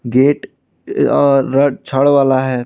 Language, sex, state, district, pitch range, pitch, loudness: Hindi, male, Jharkhand, Ranchi, 130-140 Hz, 135 Hz, -14 LUFS